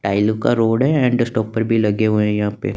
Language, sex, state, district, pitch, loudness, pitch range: Hindi, male, Chandigarh, Chandigarh, 110 Hz, -17 LUFS, 105-120 Hz